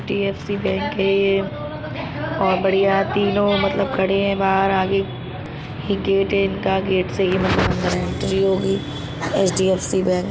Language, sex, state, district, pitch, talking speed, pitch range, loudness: Hindi, female, Uttar Pradesh, Budaun, 195 Hz, 155 wpm, 180-195 Hz, -20 LUFS